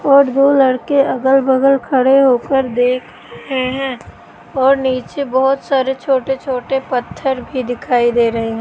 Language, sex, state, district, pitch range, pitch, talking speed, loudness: Hindi, female, Madhya Pradesh, Katni, 255-270 Hz, 265 Hz, 160 wpm, -15 LUFS